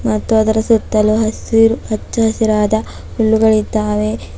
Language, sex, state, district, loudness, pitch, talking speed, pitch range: Kannada, female, Karnataka, Bidar, -14 LUFS, 220 Hz, 95 wpm, 215-225 Hz